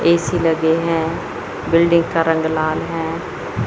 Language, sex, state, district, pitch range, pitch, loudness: Hindi, male, Chandigarh, Chandigarh, 160-170 Hz, 165 Hz, -18 LUFS